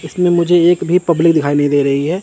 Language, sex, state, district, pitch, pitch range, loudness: Hindi, male, Chandigarh, Chandigarh, 170 Hz, 145-175 Hz, -13 LUFS